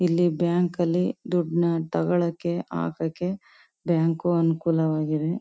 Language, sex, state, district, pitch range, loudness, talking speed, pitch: Kannada, female, Karnataka, Chamarajanagar, 160-175 Hz, -25 LUFS, 90 wpm, 170 Hz